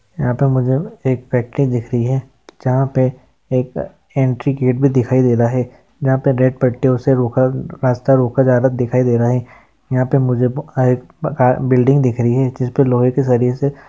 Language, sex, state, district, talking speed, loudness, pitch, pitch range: Hindi, male, Maharashtra, Sindhudurg, 200 wpm, -16 LUFS, 130 Hz, 125-135 Hz